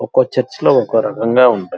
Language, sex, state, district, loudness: Telugu, male, Andhra Pradesh, Krishna, -14 LUFS